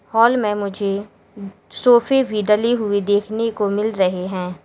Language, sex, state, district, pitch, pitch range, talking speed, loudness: Hindi, female, Uttar Pradesh, Lalitpur, 210 Hz, 200-225 Hz, 155 wpm, -18 LUFS